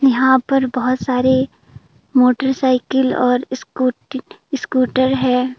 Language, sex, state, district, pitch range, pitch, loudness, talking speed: Hindi, female, Arunachal Pradesh, Papum Pare, 255-265 Hz, 260 Hz, -17 LUFS, 95 wpm